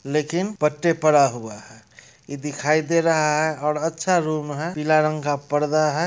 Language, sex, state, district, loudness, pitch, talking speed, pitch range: Hindi, male, Bihar, Muzaffarpur, -21 LUFS, 150 Hz, 190 wpm, 145-160 Hz